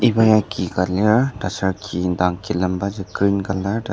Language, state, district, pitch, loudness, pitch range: Ao, Nagaland, Dimapur, 95 Hz, -20 LUFS, 90-105 Hz